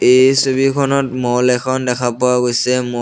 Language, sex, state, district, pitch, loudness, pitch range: Assamese, male, Assam, Sonitpur, 125 Hz, -15 LUFS, 125-130 Hz